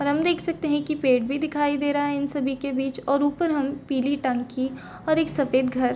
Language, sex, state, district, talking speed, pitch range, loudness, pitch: Hindi, female, Chhattisgarh, Korba, 250 wpm, 265-295 Hz, -24 LUFS, 280 Hz